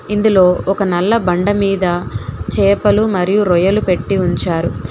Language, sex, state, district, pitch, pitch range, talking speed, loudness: Telugu, female, Telangana, Hyderabad, 185 Hz, 175-200 Hz, 110 wpm, -14 LUFS